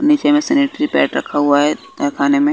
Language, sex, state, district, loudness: Hindi, male, Bihar, West Champaran, -16 LUFS